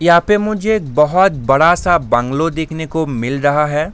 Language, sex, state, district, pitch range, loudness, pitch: Hindi, male, Bihar, East Champaran, 145-175 Hz, -14 LUFS, 160 Hz